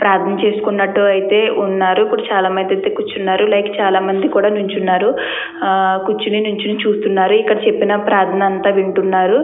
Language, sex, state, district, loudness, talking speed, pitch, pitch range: Telugu, female, Andhra Pradesh, Chittoor, -15 LUFS, 120 wpm, 200 Hz, 190-210 Hz